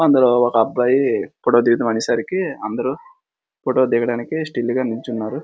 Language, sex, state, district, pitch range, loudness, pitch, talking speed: Telugu, male, Andhra Pradesh, Srikakulam, 120-135 Hz, -19 LUFS, 125 Hz, 130 wpm